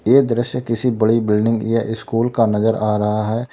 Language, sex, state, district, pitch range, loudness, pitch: Hindi, male, Uttar Pradesh, Lalitpur, 110-120 Hz, -18 LUFS, 115 Hz